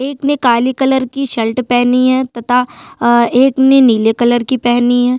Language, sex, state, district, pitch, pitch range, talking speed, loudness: Hindi, female, Chhattisgarh, Sukma, 250 Hz, 240-265 Hz, 195 wpm, -12 LUFS